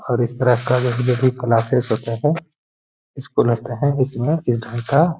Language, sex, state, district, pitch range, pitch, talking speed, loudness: Hindi, male, Bihar, Gaya, 120-130 Hz, 125 Hz, 195 wpm, -19 LUFS